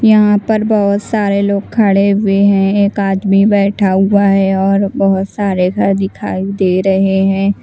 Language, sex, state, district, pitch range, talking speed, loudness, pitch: Hindi, female, Bihar, West Champaran, 195-200 Hz, 165 wpm, -12 LUFS, 200 Hz